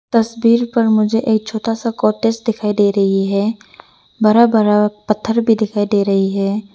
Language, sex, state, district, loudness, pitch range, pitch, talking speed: Hindi, female, Arunachal Pradesh, Lower Dibang Valley, -15 LUFS, 205-225 Hz, 215 Hz, 170 wpm